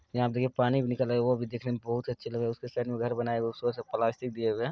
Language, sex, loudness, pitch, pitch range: Maithili, male, -31 LUFS, 120 Hz, 115-125 Hz